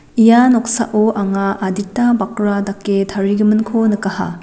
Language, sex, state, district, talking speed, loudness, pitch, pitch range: Garo, female, Meghalaya, West Garo Hills, 110 wpm, -15 LUFS, 210 Hz, 195-225 Hz